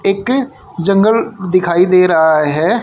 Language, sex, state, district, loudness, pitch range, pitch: Hindi, male, Haryana, Charkhi Dadri, -13 LUFS, 170-220 Hz, 185 Hz